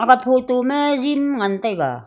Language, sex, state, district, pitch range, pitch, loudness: Wancho, female, Arunachal Pradesh, Longding, 230-280 Hz, 255 Hz, -18 LUFS